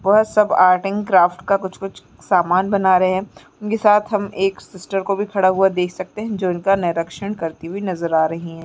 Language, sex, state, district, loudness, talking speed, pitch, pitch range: Hindi, female, Uttarakhand, Uttarkashi, -18 LUFS, 220 wpm, 190 Hz, 180-200 Hz